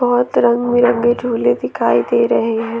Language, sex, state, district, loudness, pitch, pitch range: Hindi, female, Jharkhand, Ranchi, -15 LUFS, 240 Hz, 235-245 Hz